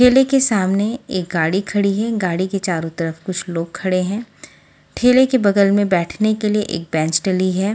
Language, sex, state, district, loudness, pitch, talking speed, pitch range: Hindi, female, Haryana, Charkhi Dadri, -18 LUFS, 195 Hz, 200 wpm, 180-215 Hz